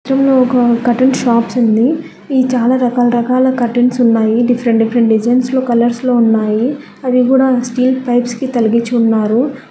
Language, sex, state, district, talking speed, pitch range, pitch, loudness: Telugu, female, Telangana, Hyderabad, 150 wpm, 235-255 Hz, 245 Hz, -13 LUFS